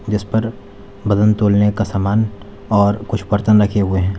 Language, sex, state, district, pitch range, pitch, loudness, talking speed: Hindi, male, Uttar Pradesh, Lalitpur, 100-105 Hz, 105 Hz, -16 LUFS, 170 wpm